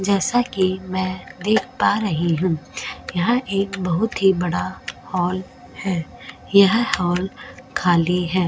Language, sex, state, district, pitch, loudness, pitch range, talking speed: Hindi, female, Goa, North and South Goa, 185 Hz, -21 LUFS, 180-200 Hz, 125 wpm